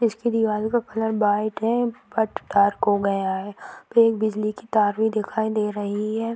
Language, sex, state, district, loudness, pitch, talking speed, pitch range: Hindi, female, Uttar Pradesh, Hamirpur, -23 LUFS, 215 Hz, 200 wpm, 205-225 Hz